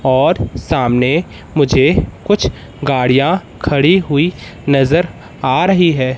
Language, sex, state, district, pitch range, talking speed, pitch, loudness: Hindi, male, Madhya Pradesh, Katni, 130-175 Hz, 105 wpm, 145 Hz, -14 LUFS